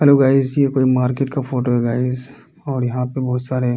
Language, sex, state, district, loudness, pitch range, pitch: Hindi, male, Bihar, Kishanganj, -18 LUFS, 125-135 Hz, 130 Hz